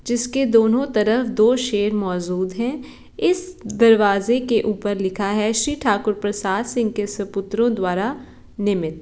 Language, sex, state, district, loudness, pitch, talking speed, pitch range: Hindi, female, Bihar, Saran, -20 LUFS, 215 Hz, 145 wpm, 200-240 Hz